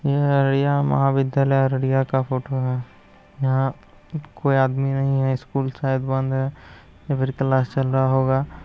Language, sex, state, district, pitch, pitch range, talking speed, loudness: Hindi, male, Bihar, Araria, 135 Hz, 130-135 Hz, 155 wpm, -21 LUFS